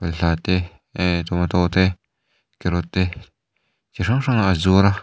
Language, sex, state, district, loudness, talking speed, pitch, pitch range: Mizo, male, Mizoram, Aizawl, -20 LUFS, 155 wpm, 90 Hz, 85-95 Hz